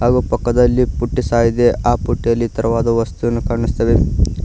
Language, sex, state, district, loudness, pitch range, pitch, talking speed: Kannada, male, Karnataka, Koppal, -16 LUFS, 115-120 Hz, 120 Hz, 135 wpm